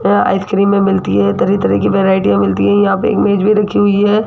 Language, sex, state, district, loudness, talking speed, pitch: Hindi, female, Rajasthan, Jaipur, -12 LUFS, 240 wpm, 190 Hz